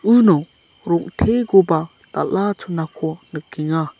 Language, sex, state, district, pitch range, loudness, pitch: Garo, male, Meghalaya, South Garo Hills, 160-200 Hz, -19 LUFS, 165 Hz